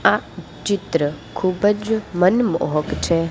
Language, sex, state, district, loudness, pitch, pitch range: Gujarati, female, Gujarat, Gandhinagar, -20 LUFS, 185 Hz, 160-205 Hz